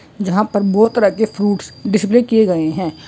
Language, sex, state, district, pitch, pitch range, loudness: Hindi, female, Andhra Pradesh, Chittoor, 205 Hz, 180-215 Hz, -15 LUFS